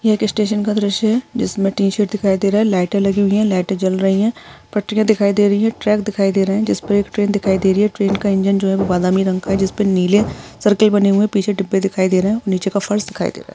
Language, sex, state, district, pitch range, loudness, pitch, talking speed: Hindi, female, Maharashtra, Nagpur, 195-210 Hz, -16 LUFS, 200 Hz, 290 wpm